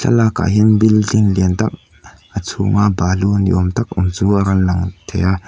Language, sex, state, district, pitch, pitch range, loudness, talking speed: Mizo, male, Mizoram, Aizawl, 100 Hz, 95-105 Hz, -15 LUFS, 210 wpm